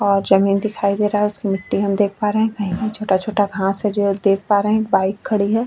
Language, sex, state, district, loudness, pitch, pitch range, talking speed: Hindi, female, Chhattisgarh, Bastar, -18 LUFS, 205 Hz, 195-210 Hz, 285 wpm